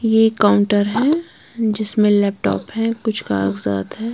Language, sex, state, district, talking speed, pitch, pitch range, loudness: Hindi, female, Punjab, Kapurthala, 130 wpm, 210 Hz, 200-225 Hz, -18 LUFS